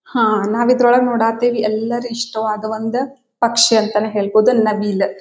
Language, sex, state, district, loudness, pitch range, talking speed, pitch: Kannada, female, Karnataka, Dharwad, -16 LUFS, 215-240 Hz, 140 wpm, 225 Hz